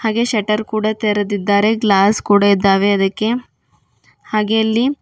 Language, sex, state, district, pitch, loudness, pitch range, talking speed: Kannada, female, Karnataka, Bidar, 210 Hz, -15 LUFS, 200-220 Hz, 120 wpm